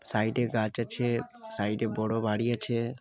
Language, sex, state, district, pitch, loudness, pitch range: Bengali, male, West Bengal, Malda, 115 Hz, -30 LUFS, 110-120 Hz